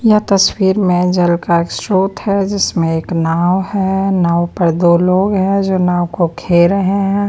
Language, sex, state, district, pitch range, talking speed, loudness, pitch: Hindi, female, Bihar, Patna, 170-195 Hz, 190 wpm, -14 LUFS, 185 Hz